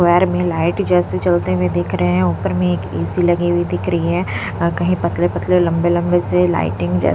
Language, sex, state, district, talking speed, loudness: Hindi, female, Punjab, Pathankot, 225 wpm, -17 LUFS